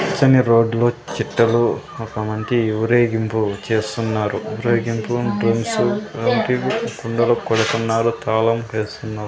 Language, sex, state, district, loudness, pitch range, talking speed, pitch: Telugu, male, Andhra Pradesh, Sri Satya Sai, -19 LUFS, 110-120 Hz, 85 wpm, 115 Hz